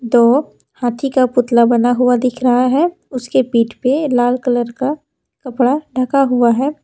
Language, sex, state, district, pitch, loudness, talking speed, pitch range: Hindi, female, Jharkhand, Deoghar, 250 Hz, -15 LUFS, 165 wpm, 245-270 Hz